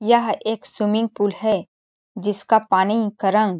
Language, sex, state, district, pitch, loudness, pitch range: Hindi, female, Chhattisgarh, Balrampur, 210 Hz, -20 LUFS, 200-220 Hz